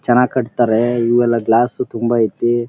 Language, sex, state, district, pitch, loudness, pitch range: Kannada, male, Karnataka, Bellary, 120 Hz, -16 LUFS, 115-120 Hz